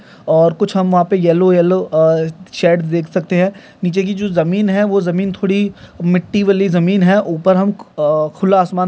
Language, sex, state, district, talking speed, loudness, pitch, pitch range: Hindi, male, Andhra Pradesh, Guntur, 190 wpm, -14 LUFS, 185 Hz, 175-195 Hz